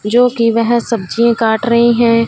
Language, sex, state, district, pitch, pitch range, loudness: Hindi, female, Punjab, Fazilka, 230 Hz, 230-235 Hz, -13 LUFS